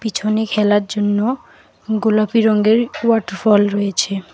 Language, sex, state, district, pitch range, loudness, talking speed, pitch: Bengali, female, West Bengal, Alipurduar, 205-220 Hz, -16 LUFS, 95 wpm, 215 Hz